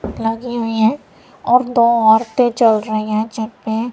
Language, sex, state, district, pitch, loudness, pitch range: Hindi, female, Punjab, Kapurthala, 225 Hz, -16 LUFS, 220-240 Hz